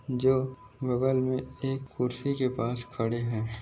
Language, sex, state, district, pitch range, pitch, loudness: Hindi, male, Maharashtra, Aurangabad, 120-130 Hz, 125 Hz, -30 LUFS